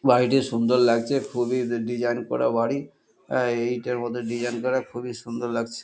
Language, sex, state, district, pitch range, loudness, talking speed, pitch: Bengali, male, West Bengal, Kolkata, 120-125 Hz, -25 LUFS, 155 wpm, 120 Hz